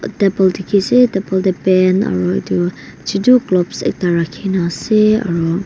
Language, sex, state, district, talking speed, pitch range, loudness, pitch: Nagamese, female, Nagaland, Kohima, 140 wpm, 170-200 Hz, -15 LUFS, 190 Hz